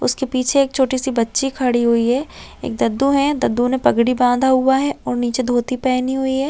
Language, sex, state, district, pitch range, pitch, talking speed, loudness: Hindi, female, Chhattisgarh, Raigarh, 245-265 Hz, 255 Hz, 220 wpm, -17 LUFS